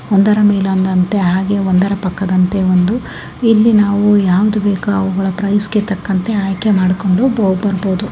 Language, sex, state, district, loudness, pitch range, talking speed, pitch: Kannada, female, Karnataka, Gulbarga, -14 LUFS, 190-205 Hz, 135 wpm, 200 Hz